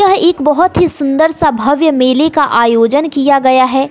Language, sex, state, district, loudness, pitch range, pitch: Hindi, female, Bihar, West Champaran, -10 LUFS, 265-315 Hz, 290 Hz